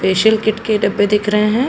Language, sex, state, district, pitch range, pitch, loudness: Hindi, female, Uttar Pradesh, Hamirpur, 205-220 Hz, 210 Hz, -15 LUFS